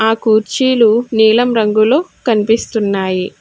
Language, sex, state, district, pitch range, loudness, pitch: Telugu, female, Telangana, Hyderabad, 215-235 Hz, -13 LUFS, 220 Hz